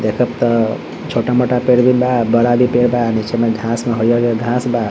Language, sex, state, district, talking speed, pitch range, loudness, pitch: Bhojpuri, male, Bihar, Saran, 245 wpm, 115-125 Hz, -15 LUFS, 120 Hz